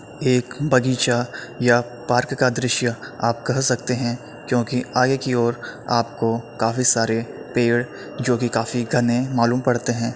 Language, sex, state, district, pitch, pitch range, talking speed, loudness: Hindi, male, Uttar Pradesh, Etah, 120 Hz, 120-125 Hz, 140 wpm, -21 LUFS